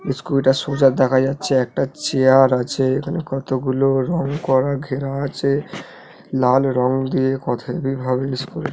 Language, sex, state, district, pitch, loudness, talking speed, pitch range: Bengali, male, West Bengal, North 24 Parganas, 135 Hz, -19 LUFS, 130 wpm, 130-140 Hz